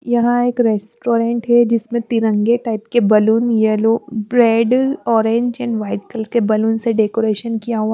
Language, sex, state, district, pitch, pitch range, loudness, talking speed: Hindi, female, Bihar, West Champaran, 230 Hz, 220-240 Hz, -16 LUFS, 165 wpm